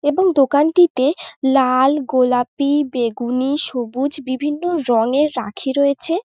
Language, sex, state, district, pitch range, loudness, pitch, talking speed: Bengali, female, West Bengal, North 24 Parganas, 255-295 Hz, -17 LUFS, 275 Hz, 95 wpm